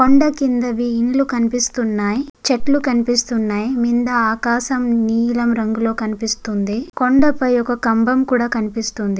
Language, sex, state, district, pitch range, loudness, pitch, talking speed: Telugu, female, Andhra Pradesh, Guntur, 225-255 Hz, -17 LUFS, 240 Hz, 105 wpm